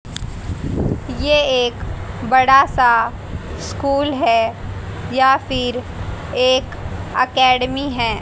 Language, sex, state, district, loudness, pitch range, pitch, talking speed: Hindi, female, Haryana, Rohtak, -17 LUFS, 250-275 Hz, 260 Hz, 80 wpm